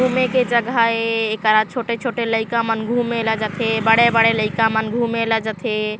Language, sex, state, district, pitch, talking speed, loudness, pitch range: Chhattisgarhi, female, Chhattisgarh, Korba, 225 Hz, 150 wpm, -18 LUFS, 220-235 Hz